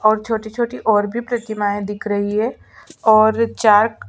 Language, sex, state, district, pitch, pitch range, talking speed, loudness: Hindi, female, Chhattisgarh, Sukma, 220 Hz, 210-230 Hz, 145 wpm, -18 LUFS